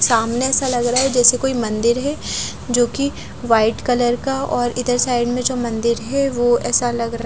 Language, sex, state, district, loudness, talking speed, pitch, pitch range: Hindi, female, Punjab, Fazilka, -18 LUFS, 205 wpm, 245 Hz, 235-260 Hz